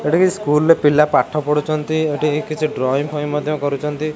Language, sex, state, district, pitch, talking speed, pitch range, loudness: Odia, male, Odisha, Khordha, 150 Hz, 190 wpm, 150-155 Hz, -17 LUFS